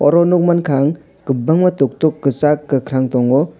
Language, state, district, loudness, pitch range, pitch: Kokborok, Tripura, West Tripura, -15 LUFS, 135-160 Hz, 145 Hz